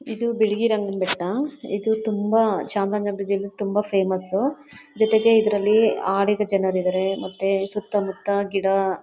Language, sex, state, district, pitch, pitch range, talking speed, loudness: Kannada, female, Karnataka, Chamarajanagar, 205 Hz, 195-220 Hz, 115 wpm, -22 LUFS